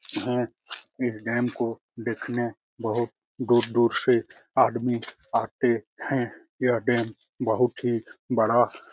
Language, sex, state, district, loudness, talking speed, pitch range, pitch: Hindi, male, Bihar, Lakhisarai, -26 LUFS, 115 wpm, 115-125 Hz, 120 Hz